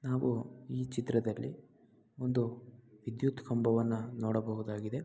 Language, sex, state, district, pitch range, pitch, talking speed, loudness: Kannada, male, Karnataka, Mysore, 110-125 Hz, 120 Hz, 85 wpm, -35 LUFS